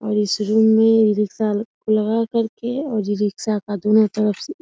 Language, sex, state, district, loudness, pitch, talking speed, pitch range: Hindi, female, Bihar, Samastipur, -19 LUFS, 215 Hz, 180 wpm, 210-225 Hz